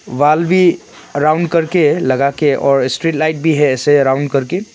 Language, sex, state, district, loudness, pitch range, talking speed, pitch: Hindi, male, Arunachal Pradesh, Longding, -13 LUFS, 140-165 Hz, 165 wpm, 150 Hz